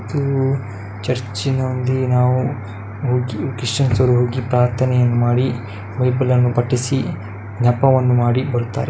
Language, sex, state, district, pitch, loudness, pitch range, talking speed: Kannada, male, Karnataka, Dakshina Kannada, 125 Hz, -18 LUFS, 120-130 Hz, 100 wpm